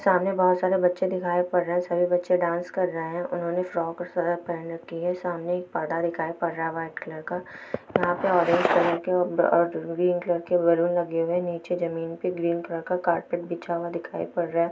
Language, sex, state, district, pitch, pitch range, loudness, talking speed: Hindi, female, Bihar, Sitamarhi, 175 Hz, 170-180 Hz, -26 LUFS, 240 wpm